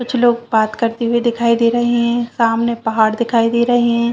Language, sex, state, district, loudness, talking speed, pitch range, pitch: Hindi, female, Chhattisgarh, Bastar, -15 LUFS, 220 wpm, 230-240 Hz, 235 Hz